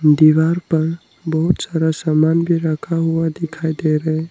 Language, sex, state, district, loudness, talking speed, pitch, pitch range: Hindi, male, Arunachal Pradesh, Lower Dibang Valley, -17 LUFS, 165 wpm, 160 Hz, 155-165 Hz